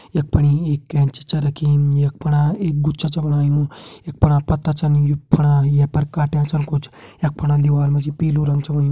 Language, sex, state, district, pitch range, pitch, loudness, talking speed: Hindi, male, Uttarakhand, Uttarkashi, 145-155 Hz, 145 Hz, -18 LUFS, 215 wpm